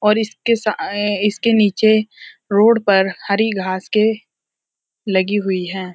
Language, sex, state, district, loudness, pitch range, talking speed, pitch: Hindi, female, Uttarakhand, Uttarkashi, -17 LUFS, 195-220 Hz, 130 wpm, 210 Hz